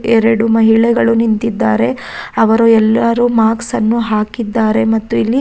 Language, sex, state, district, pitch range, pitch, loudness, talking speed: Kannada, female, Karnataka, Raichur, 220-230 Hz, 225 Hz, -12 LUFS, 110 wpm